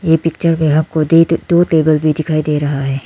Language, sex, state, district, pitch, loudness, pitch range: Hindi, female, Arunachal Pradesh, Lower Dibang Valley, 155 Hz, -13 LUFS, 150-165 Hz